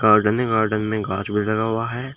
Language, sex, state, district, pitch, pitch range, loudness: Hindi, male, Uttar Pradesh, Shamli, 110 Hz, 105-115 Hz, -21 LUFS